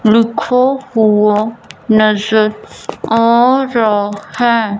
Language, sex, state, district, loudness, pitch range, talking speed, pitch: Hindi, female, Punjab, Fazilka, -13 LUFS, 215-235 Hz, 75 wpm, 225 Hz